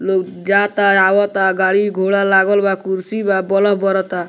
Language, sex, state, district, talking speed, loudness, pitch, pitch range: Bhojpuri, male, Bihar, Muzaffarpur, 125 wpm, -15 LUFS, 195 Hz, 190-200 Hz